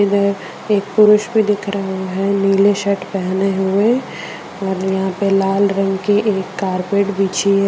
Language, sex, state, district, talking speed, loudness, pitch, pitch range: Hindi, female, Jharkhand, Deoghar, 165 wpm, -16 LUFS, 195 Hz, 190-200 Hz